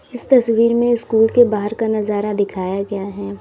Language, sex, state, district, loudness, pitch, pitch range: Hindi, female, Uttar Pradesh, Lalitpur, -17 LUFS, 215 Hz, 200-235 Hz